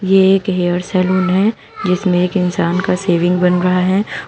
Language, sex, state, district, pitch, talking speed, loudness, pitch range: Hindi, female, Uttar Pradesh, Shamli, 185 Hz, 180 wpm, -15 LUFS, 180-190 Hz